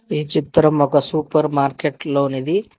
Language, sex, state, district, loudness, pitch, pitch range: Telugu, male, Telangana, Hyderabad, -18 LUFS, 150 Hz, 140-155 Hz